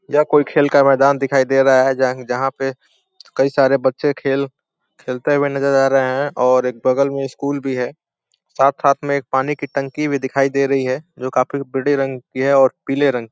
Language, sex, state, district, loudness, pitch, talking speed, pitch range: Hindi, male, Uttar Pradesh, Deoria, -17 LUFS, 135 Hz, 210 wpm, 130-140 Hz